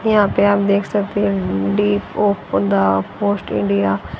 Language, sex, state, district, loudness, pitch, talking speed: Hindi, female, Haryana, Rohtak, -17 LUFS, 175 Hz, 130 wpm